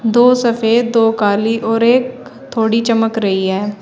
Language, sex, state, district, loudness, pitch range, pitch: Hindi, female, Uttar Pradesh, Shamli, -14 LUFS, 220-240 Hz, 225 Hz